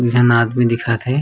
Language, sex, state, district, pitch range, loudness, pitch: Chhattisgarhi, male, Chhattisgarh, Raigarh, 115-125 Hz, -15 LUFS, 120 Hz